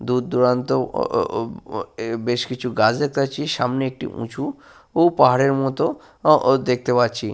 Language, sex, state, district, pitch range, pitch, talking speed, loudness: Bengali, male, Jharkhand, Sahebganj, 125-145 Hz, 125 Hz, 165 wpm, -20 LUFS